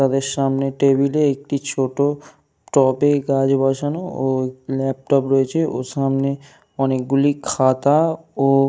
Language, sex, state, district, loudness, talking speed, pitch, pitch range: Bengali, male, Jharkhand, Jamtara, -19 LUFS, 140 wpm, 135 Hz, 135-145 Hz